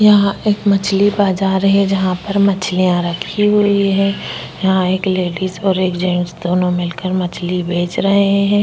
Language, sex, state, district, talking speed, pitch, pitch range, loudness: Hindi, female, Maharashtra, Chandrapur, 160 wpm, 190 Hz, 180-200 Hz, -15 LUFS